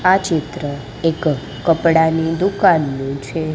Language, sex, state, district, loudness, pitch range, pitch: Gujarati, female, Gujarat, Gandhinagar, -17 LUFS, 140-165 Hz, 160 Hz